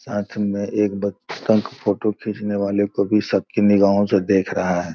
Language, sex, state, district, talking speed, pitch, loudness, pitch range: Hindi, male, Bihar, Gopalganj, 205 wpm, 100 Hz, -20 LUFS, 100-105 Hz